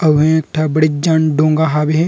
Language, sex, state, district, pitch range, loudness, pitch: Chhattisgarhi, male, Chhattisgarh, Rajnandgaon, 155-160 Hz, -14 LUFS, 155 Hz